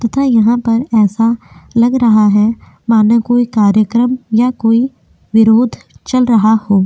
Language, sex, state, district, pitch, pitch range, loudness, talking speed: Hindi, female, Chhattisgarh, Korba, 230 Hz, 220-240 Hz, -12 LUFS, 140 wpm